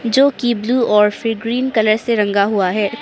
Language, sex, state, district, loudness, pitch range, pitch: Hindi, male, Arunachal Pradesh, Papum Pare, -16 LUFS, 210-240 Hz, 225 Hz